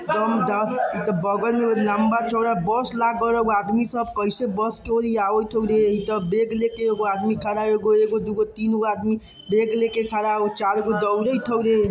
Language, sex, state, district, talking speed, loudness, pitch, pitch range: Bajjika, male, Bihar, Vaishali, 145 wpm, -22 LUFS, 215 Hz, 210-230 Hz